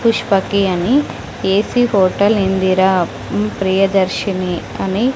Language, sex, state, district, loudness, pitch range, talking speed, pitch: Telugu, female, Andhra Pradesh, Sri Satya Sai, -16 LUFS, 185-205 Hz, 95 wpm, 195 Hz